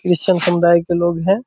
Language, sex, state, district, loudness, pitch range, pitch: Hindi, male, Bihar, Purnia, -14 LUFS, 170-185 Hz, 175 Hz